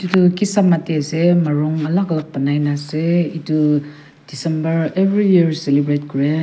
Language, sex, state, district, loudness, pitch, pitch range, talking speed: Nagamese, female, Nagaland, Kohima, -17 LUFS, 160 Hz, 150-175 Hz, 150 wpm